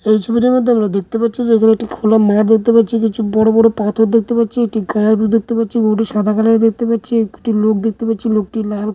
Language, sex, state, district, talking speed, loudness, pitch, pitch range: Bengali, male, West Bengal, Dakshin Dinajpur, 235 wpm, -14 LUFS, 225 Hz, 215-230 Hz